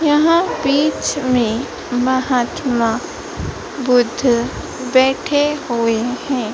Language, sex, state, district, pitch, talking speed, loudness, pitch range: Hindi, female, Madhya Pradesh, Dhar, 255 Hz, 75 wpm, -17 LUFS, 240-285 Hz